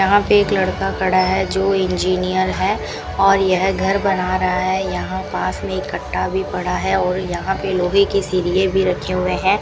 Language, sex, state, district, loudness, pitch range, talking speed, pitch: Hindi, female, Rajasthan, Bikaner, -18 LUFS, 185-195 Hz, 205 wpm, 190 Hz